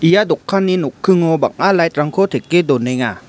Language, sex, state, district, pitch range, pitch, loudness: Garo, male, Meghalaya, West Garo Hills, 140-190 Hz, 170 Hz, -15 LUFS